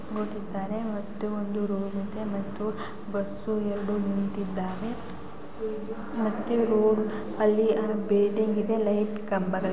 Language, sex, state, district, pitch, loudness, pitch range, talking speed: Kannada, female, Karnataka, Gulbarga, 210 Hz, -28 LUFS, 200-215 Hz, 95 wpm